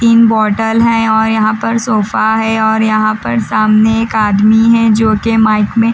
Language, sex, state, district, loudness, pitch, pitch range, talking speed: Hindi, female, Bihar, Patna, -11 LUFS, 220 Hz, 215-225 Hz, 180 wpm